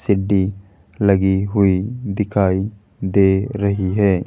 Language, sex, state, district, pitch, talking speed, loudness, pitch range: Hindi, male, Rajasthan, Jaipur, 100 Hz, 100 wpm, -18 LUFS, 95-100 Hz